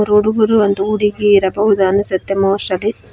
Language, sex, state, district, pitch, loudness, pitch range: Kannada, female, Karnataka, Koppal, 205 Hz, -14 LUFS, 195-210 Hz